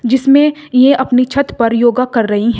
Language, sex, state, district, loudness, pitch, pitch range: Hindi, female, Uttar Pradesh, Shamli, -12 LUFS, 255 Hz, 235-275 Hz